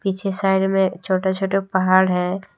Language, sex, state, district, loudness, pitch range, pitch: Hindi, female, Jharkhand, Deoghar, -19 LUFS, 185-195 Hz, 190 Hz